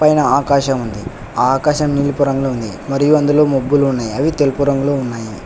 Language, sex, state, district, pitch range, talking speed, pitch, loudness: Telugu, male, Telangana, Hyderabad, 130-145 Hz, 165 wpm, 140 Hz, -15 LUFS